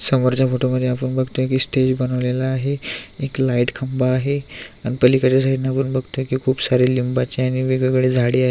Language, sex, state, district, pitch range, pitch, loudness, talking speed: Marathi, male, Maharashtra, Aurangabad, 125-130 Hz, 130 Hz, -19 LUFS, 175 wpm